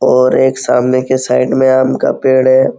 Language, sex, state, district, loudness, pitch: Hindi, male, Uttar Pradesh, Muzaffarnagar, -11 LUFS, 130 Hz